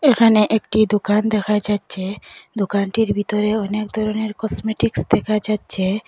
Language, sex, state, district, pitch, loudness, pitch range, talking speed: Bengali, female, Assam, Hailakandi, 210 Hz, -19 LUFS, 205-220 Hz, 120 wpm